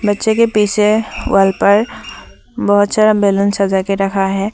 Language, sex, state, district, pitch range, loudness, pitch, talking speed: Hindi, female, Assam, Sonitpur, 195-215 Hz, -13 LUFS, 205 Hz, 160 wpm